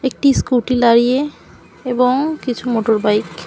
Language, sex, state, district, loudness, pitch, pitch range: Bengali, female, West Bengal, Cooch Behar, -16 LUFS, 245 Hz, 225-265 Hz